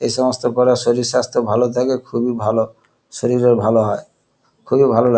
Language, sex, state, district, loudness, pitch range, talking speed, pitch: Bengali, male, West Bengal, Kolkata, -17 LUFS, 115-125 Hz, 175 wpm, 120 Hz